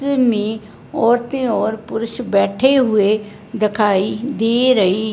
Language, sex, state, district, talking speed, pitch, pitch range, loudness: Hindi, male, Punjab, Fazilka, 105 wpm, 220 Hz, 210-245 Hz, -17 LUFS